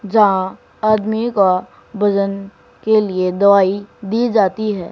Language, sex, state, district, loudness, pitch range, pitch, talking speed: Hindi, female, Haryana, Charkhi Dadri, -16 LUFS, 195-215 Hz, 200 Hz, 120 wpm